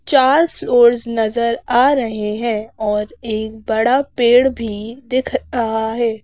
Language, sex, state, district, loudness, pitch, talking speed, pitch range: Hindi, female, Madhya Pradesh, Bhopal, -16 LUFS, 235 Hz, 135 wpm, 220-255 Hz